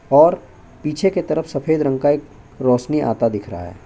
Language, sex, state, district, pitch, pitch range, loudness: Hindi, male, Chhattisgarh, Bastar, 140 Hz, 115-150 Hz, -19 LUFS